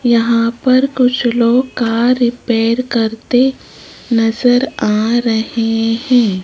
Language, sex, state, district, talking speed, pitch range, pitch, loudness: Hindi, female, Rajasthan, Jaipur, 100 wpm, 225-250 Hz, 235 Hz, -14 LUFS